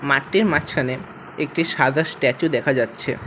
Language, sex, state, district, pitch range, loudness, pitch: Bengali, male, West Bengal, Alipurduar, 135-165 Hz, -20 LUFS, 150 Hz